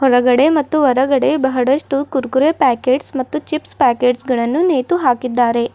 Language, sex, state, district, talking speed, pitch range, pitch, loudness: Kannada, female, Karnataka, Bidar, 125 wpm, 250-290 Hz, 265 Hz, -15 LUFS